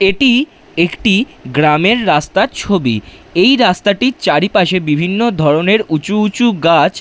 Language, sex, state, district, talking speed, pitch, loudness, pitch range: Bengali, male, West Bengal, Dakshin Dinajpur, 110 wpm, 195 Hz, -13 LUFS, 155-225 Hz